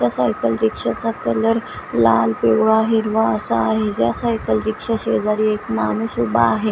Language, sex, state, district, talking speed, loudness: Marathi, female, Maharashtra, Washim, 150 wpm, -18 LUFS